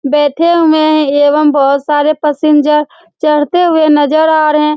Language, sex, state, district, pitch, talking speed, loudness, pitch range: Hindi, female, Bihar, Saran, 300 Hz, 175 wpm, -10 LUFS, 295-315 Hz